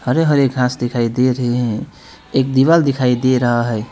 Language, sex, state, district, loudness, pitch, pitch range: Hindi, male, West Bengal, Alipurduar, -16 LUFS, 125 Hz, 120-130 Hz